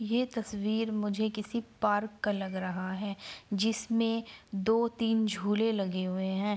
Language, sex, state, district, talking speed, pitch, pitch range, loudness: Hindi, female, Bihar, Araria, 145 wpm, 210 Hz, 200-225 Hz, -32 LUFS